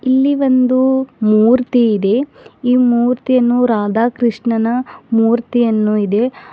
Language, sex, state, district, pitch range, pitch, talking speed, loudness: Kannada, female, Karnataka, Bidar, 225-255 Hz, 240 Hz, 85 wpm, -14 LUFS